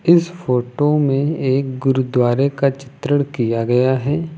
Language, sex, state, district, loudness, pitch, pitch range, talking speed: Hindi, male, Uttar Pradesh, Lucknow, -18 LUFS, 135 Hz, 130-145 Hz, 135 wpm